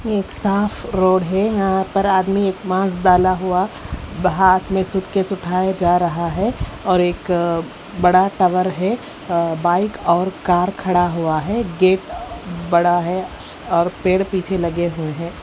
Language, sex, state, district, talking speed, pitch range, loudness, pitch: Hindi, female, Haryana, Rohtak, 150 wpm, 175-195 Hz, -18 LUFS, 185 Hz